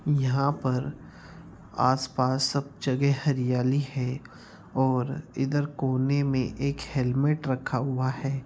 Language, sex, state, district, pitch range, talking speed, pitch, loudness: Hindi, male, Bihar, Jamui, 130-140 Hz, 120 wpm, 135 Hz, -27 LUFS